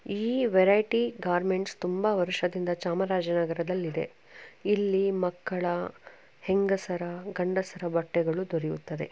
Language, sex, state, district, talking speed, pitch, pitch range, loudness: Kannada, female, Karnataka, Chamarajanagar, 80 wpm, 185 Hz, 175-195 Hz, -28 LUFS